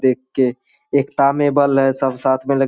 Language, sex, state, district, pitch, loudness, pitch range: Hindi, male, Bihar, Saharsa, 135 Hz, -17 LUFS, 130-140 Hz